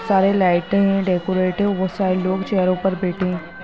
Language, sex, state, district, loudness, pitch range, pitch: Hindi, female, Bihar, Muzaffarpur, -19 LUFS, 185-195 Hz, 190 Hz